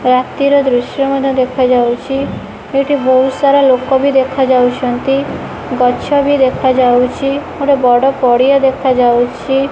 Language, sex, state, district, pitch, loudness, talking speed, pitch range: Odia, female, Odisha, Khordha, 265 Hz, -12 LUFS, 105 wpm, 250-275 Hz